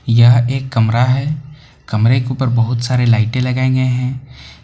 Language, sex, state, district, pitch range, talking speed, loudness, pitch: Hindi, male, Jharkhand, Palamu, 120-130 Hz, 170 wpm, -15 LUFS, 125 Hz